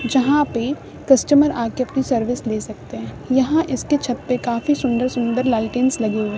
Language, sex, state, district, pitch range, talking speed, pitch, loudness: Hindi, female, Bihar, West Champaran, 230-265 Hz, 190 wpm, 250 Hz, -19 LUFS